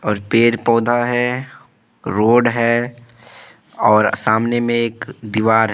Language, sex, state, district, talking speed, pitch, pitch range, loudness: Hindi, male, Bihar, Purnia, 125 wpm, 115 Hz, 110-120 Hz, -16 LUFS